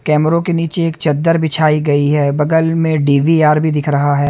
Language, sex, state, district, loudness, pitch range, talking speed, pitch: Hindi, male, Haryana, Charkhi Dadri, -14 LUFS, 145-165 Hz, 235 wpm, 155 Hz